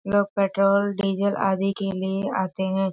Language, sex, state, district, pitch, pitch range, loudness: Hindi, female, Bihar, Sitamarhi, 195 Hz, 190-200 Hz, -23 LUFS